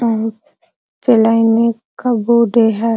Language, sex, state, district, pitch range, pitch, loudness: Hindi, female, Bihar, Araria, 225-235 Hz, 230 Hz, -14 LUFS